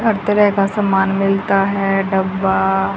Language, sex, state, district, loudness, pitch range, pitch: Hindi, female, Haryana, Charkhi Dadri, -16 LUFS, 190-200 Hz, 195 Hz